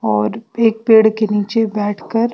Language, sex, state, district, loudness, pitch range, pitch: Hindi, female, Bihar, West Champaran, -15 LUFS, 205-225 Hz, 220 Hz